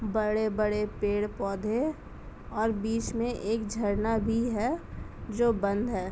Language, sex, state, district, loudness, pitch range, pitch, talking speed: Hindi, female, Uttar Pradesh, Jyotiba Phule Nagar, -30 LUFS, 210-230 Hz, 220 Hz, 125 wpm